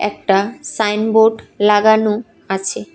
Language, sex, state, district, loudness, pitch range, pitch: Bengali, female, Tripura, West Tripura, -15 LUFS, 205-220 Hz, 210 Hz